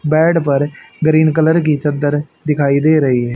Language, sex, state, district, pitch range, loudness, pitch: Hindi, male, Haryana, Rohtak, 145-155 Hz, -14 LUFS, 150 Hz